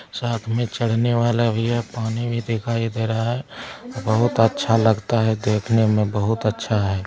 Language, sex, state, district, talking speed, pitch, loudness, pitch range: Maithili, male, Bihar, Araria, 180 wpm, 115 Hz, -21 LUFS, 110-120 Hz